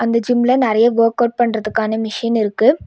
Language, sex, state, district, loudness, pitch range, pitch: Tamil, female, Tamil Nadu, Nilgiris, -16 LUFS, 220-240 Hz, 230 Hz